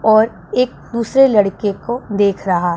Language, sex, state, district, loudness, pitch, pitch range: Hindi, female, Punjab, Pathankot, -16 LUFS, 215 Hz, 200-240 Hz